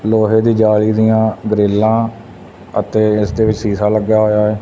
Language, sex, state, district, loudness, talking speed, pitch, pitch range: Punjabi, male, Punjab, Fazilka, -14 LUFS, 155 wpm, 110 Hz, 105-110 Hz